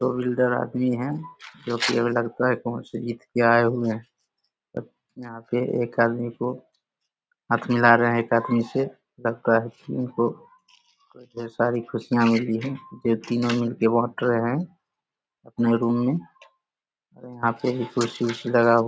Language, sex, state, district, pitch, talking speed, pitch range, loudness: Hindi, male, Bihar, Samastipur, 120 Hz, 170 wpm, 115-125 Hz, -24 LUFS